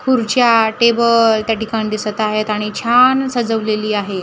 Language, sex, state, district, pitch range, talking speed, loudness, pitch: Marathi, female, Maharashtra, Gondia, 215-235 Hz, 140 wpm, -15 LUFS, 225 Hz